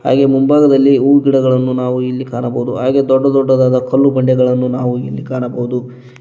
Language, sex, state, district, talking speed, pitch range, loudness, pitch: Kannada, male, Karnataka, Koppal, 145 wpm, 125-135 Hz, -13 LUFS, 130 Hz